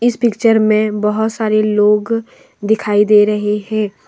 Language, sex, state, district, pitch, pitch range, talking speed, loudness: Hindi, female, Jharkhand, Deoghar, 215 Hz, 210-220 Hz, 145 wpm, -14 LUFS